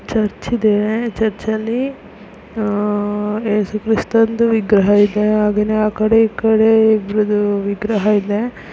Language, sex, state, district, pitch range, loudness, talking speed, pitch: Kannada, female, Karnataka, Mysore, 210-225 Hz, -16 LUFS, 105 wpm, 215 Hz